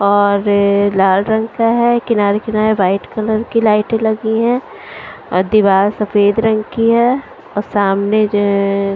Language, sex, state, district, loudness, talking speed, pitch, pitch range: Hindi, female, Punjab, Pathankot, -14 LUFS, 155 wpm, 210 Hz, 200-225 Hz